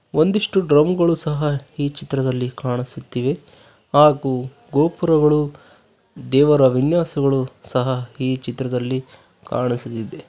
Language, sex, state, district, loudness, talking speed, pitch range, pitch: Kannada, male, Karnataka, Bangalore, -19 LUFS, 85 wpm, 130-150 Hz, 140 Hz